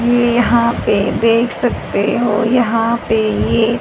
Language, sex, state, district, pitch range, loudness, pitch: Hindi, female, Haryana, Charkhi Dadri, 225-240 Hz, -15 LUFS, 235 Hz